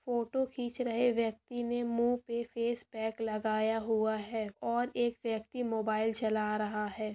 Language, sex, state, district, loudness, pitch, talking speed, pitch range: Hindi, female, Andhra Pradesh, Chittoor, -34 LUFS, 230 Hz, 145 wpm, 220-240 Hz